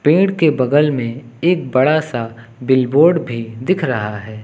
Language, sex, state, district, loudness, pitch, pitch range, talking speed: Hindi, male, Uttar Pradesh, Lucknow, -16 LUFS, 130 Hz, 115-155 Hz, 175 wpm